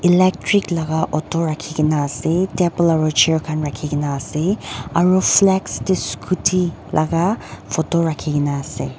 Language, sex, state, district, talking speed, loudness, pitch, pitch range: Nagamese, female, Nagaland, Dimapur, 120 wpm, -18 LUFS, 160 Hz, 150-180 Hz